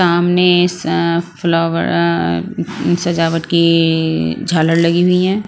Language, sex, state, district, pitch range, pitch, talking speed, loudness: Hindi, female, Punjab, Pathankot, 160-175 Hz, 170 Hz, 120 wpm, -14 LUFS